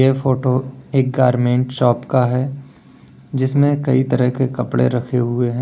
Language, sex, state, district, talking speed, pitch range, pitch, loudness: Hindi, male, Uttar Pradesh, Lalitpur, 160 wpm, 125-130 Hz, 130 Hz, -17 LUFS